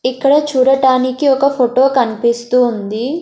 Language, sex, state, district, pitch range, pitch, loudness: Telugu, female, Andhra Pradesh, Sri Satya Sai, 245-270 Hz, 255 Hz, -13 LUFS